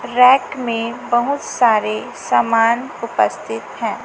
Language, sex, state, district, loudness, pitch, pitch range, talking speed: Hindi, female, Chhattisgarh, Raipur, -17 LUFS, 235 Hz, 225-250 Hz, 105 wpm